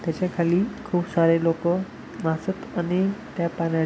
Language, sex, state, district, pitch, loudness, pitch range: Marathi, male, Maharashtra, Pune, 175 Hz, -24 LUFS, 165-190 Hz